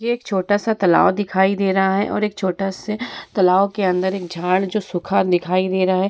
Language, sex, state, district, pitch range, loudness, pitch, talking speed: Hindi, female, Bihar, Vaishali, 185-205 Hz, -19 LUFS, 190 Hz, 235 wpm